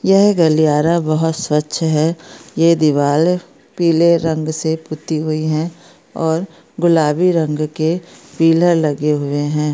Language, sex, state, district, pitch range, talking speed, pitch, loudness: Hindi, female, Rajasthan, Churu, 155-170 Hz, 130 wpm, 160 Hz, -16 LUFS